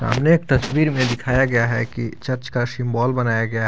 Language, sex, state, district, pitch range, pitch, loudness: Hindi, male, Jharkhand, Garhwa, 115-135 Hz, 125 Hz, -20 LUFS